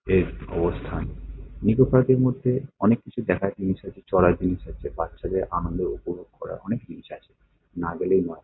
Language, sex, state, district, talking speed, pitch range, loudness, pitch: Bengali, male, West Bengal, Kolkata, 180 wpm, 90-130 Hz, -25 LUFS, 95 Hz